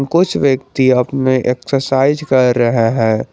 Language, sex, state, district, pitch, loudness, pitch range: Hindi, male, Jharkhand, Garhwa, 130 Hz, -14 LUFS, 125-135 Hz